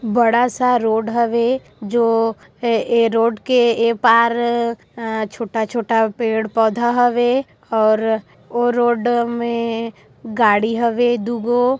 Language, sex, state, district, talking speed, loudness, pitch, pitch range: Chhattisgarhi, female, Chhattisgarh, Sarguja, 120 wpm, -17 LUFS, 235 Hz, 225-240 Hz